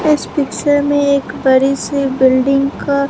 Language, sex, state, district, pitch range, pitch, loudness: Hindi, female, Bihar, Katihar, 265-285 Hz, 280 Hz, -14 LUFS